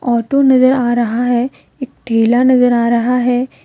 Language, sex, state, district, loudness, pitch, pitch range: Hindi, female, Jharkhand, Deoghar, -13 LUFS, 245 Hz, 240-255 Hz